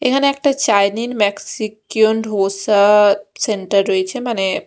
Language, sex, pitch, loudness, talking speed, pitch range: Bengali, female, 210 Hz, -16 LUFS, 115 wpm, 200-240 Hz